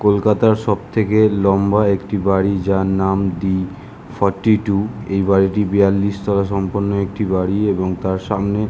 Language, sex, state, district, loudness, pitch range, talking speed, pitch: Bengali, male, West Bengal, Kolkata, -17 LUFS, 95-105 Hz, 150 wpm, 100 Hz